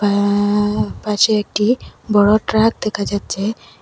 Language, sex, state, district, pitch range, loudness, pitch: Bengali, female, Assam, Hailakandi, 205-215 Hz, -17 LUFS, 210 Hz